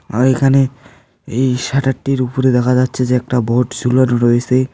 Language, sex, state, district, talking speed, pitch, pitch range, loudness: Bengali, male, West Bengal, Cooch Behar, 140 wpm, 130 Hz, 125-130 Hz, -15 LUFS